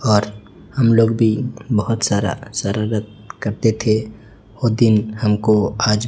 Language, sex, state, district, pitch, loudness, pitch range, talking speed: Hindi, male, Chhattisgarh, Raipur, 110 Hz, -18 LUFS, 105-115 Hz, 130 wpm